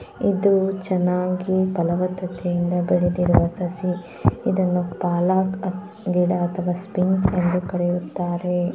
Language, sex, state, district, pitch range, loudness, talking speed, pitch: Kannada, female, Karnataka, Dharwad, 175-185 Hz, -22 LUFS, 75 wpm, 180 Hz